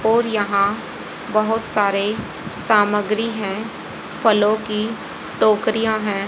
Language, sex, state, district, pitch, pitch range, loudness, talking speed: Hindi, female, Haryana, Rohtak, 215 Hz, 205-220 Hz, -19 LUFS, 85 wpm